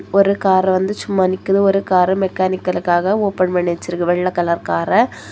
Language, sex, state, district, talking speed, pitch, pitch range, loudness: Tamil, female, Tamil Nadu, Kanyakumari, 170 wpm, 185 Hz, 175-195 Hz, -16 LUFS